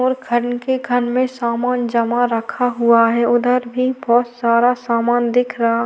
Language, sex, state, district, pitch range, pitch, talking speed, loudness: Hindi, female, Chhattisgarh, Sukma, 235-250 Hz, 240 Hz, 175 wpm, -17 LUFS